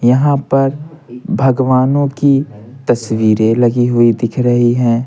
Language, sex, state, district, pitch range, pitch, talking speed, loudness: Hindi, male, Bihar, Patna, 120-135 Hz, 125 Hz, 120 wpm, -13 LUFS